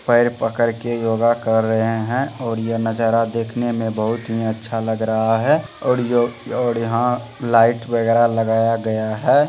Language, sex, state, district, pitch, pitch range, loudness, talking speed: Hindi, male, Bihar, Supaul, 115 Hz, 115-120 Hz, -19 LUFS, 170 wpm